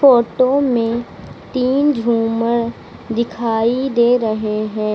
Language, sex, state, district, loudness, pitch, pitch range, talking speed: Hindi, female, Uttar Pradesh, Lucknow, -17 LUFS, 235 Hz, 225-255 Hz, 95 wpm